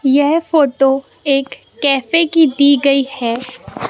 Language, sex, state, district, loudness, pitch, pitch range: Hindi, male, Madhya Pradesh, Katni, -14 LUFS, 275 Hz, 270-295 Hz